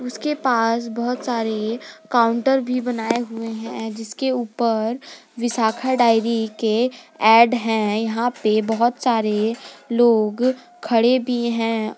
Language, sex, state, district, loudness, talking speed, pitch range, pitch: Hindi, female, Jharkhand, Garhwa, -20 LUFS, 125 wpm, 225-245 Hz, 235 Hz